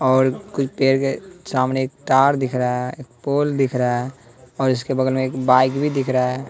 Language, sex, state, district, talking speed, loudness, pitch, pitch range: Hindi, male, Bihar, West Champaran, 220 wpm, -20 LUFS, 130 Hz, 130-135 Hz